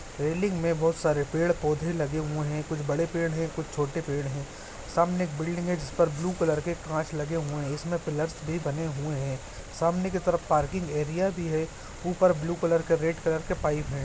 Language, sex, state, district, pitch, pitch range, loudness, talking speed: Hindi, male, Andhra Pradesh, Visakhapatnam, 160 Hz, 150-170 Hz, -28 LUFS, 220 wpm